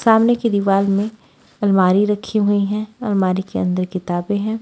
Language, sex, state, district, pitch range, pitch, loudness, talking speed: Hindi, female, Haryana, Rohtak, 190-215 Hz, 205 Hz, -18 LUFS, 170 wpm